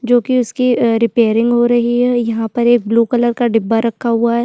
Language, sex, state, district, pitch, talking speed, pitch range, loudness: Hindi, female, Chhattisgarh, Sukma, 235 Hz, 230 wpm, 230-240 Hz, -14 LUFS